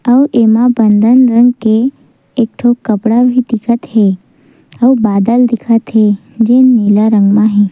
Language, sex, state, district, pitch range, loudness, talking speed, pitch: Chhattisgarhi, female, Chhattisgarh, Sukma, 215-245 Hz, -10 LUFS, 165 wpm, 230 Hz